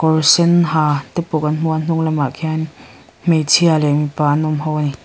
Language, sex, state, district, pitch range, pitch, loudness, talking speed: Mizo, female, Mizoram, Aizawl, 150-160 Hz, 155 Hz, -16 LUFS, 215 wpm